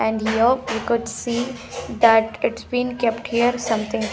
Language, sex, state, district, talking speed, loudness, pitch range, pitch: English, female, Punjab, Pathankot, 160 wpm, -21 LUFS, 225-245 Hz, 230 Hz